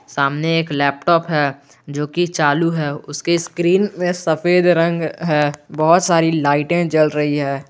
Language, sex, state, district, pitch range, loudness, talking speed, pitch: Hindi, male, Jharkhand, Garhwa, 145-170 Hz, -17 LUFS, 155 wpm, 160 Hz